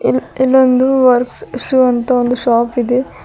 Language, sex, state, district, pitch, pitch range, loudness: Kannada, female, Karnataka, Bidar, 250 Hz, 245-260 Hz, -13 LUFS